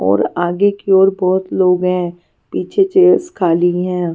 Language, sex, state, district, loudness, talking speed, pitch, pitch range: Hindi, female, Punjab, Pathankot, -14 LUFS, 160 wpm, 180 Hz, 175-195 Hz